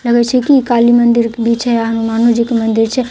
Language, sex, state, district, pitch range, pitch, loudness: Maithili, female, Bihar, Katihar, 230-240 Hz, 235 Hz, -12 LUFS